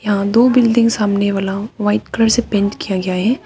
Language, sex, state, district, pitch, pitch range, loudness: Hindi, female, Arunachal Pradesh, Papum Pare, 210 Hz, 200-230 Hz, -15 LUFS